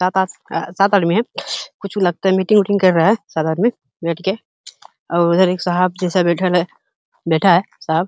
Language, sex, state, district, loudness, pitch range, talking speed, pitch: Hindi, male, Uttar Pradesh, Hamirpur, -17 LUFS, 170-195 Hz, 170 wpm, 185 Hz